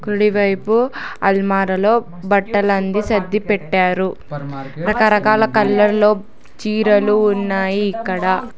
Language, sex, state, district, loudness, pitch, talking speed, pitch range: Telugu, female, Telangana, Hyderabad, -16 LUFS, 205 Hz, 75 wpm, 190-210 Hz